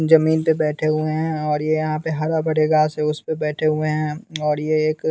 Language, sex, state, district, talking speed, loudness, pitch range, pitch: Hindi, male, Bihar, West Champaran, 260 wpm, -20 LUFS, 155-160 Hz, 155 Hz